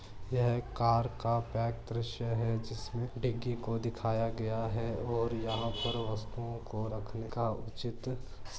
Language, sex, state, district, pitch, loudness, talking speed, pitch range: Hindi, male, Rajasthan, Churu, 115 Hz, -35 LUFS, 135 wpm, 110-120 Hz